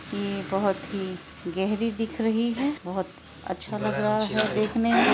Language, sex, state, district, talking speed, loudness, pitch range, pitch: Hindi, female, Bihar, Araria, 175 wpm, -27 LUFS, 195-230 Hz, 215 Hz